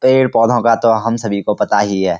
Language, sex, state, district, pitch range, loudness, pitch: Hindi, male, Uttarakhand, Uttarkashi, 100-120 Hz, -14 LUFS, 115 Hz